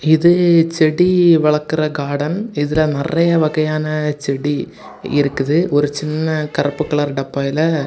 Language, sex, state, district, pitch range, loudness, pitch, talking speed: Tamil, male, Tamil Nadu, Kanyakumari, 145-160 Hz, -16 LUFS, 155 Hz, 105 wpm